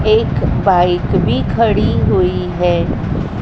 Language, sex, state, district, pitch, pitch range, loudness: Hindi, female, Madhya Pradesh, Dhar, 175 Hz, 125-185 Hz, -14 LUFS